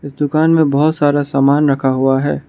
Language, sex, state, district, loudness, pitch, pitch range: Hindi, male, Arunachal Pradesh, Lower Dibang Valley, -14 LUFS, 140 Hz, 135-150 Hz